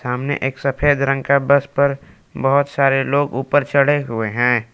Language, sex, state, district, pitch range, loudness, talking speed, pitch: Hindi, male, Jharkhand, Palamu, 135-140 Hz, -17 LUFS, 180 wpm, 140 Hz